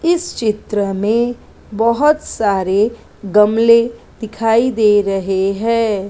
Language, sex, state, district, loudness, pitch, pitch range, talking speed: Hindi, female, Maharashtra, Mumbai Suburban, -15 LUFS, 220 Hz, 205-230 Hz, 100 wpm